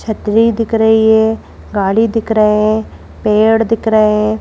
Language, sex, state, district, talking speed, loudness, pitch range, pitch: Hindi, female, Madhya Pradesh, Bhopal, 165 wpm, -12 LUFS, 215-225 Hz, 220 Hz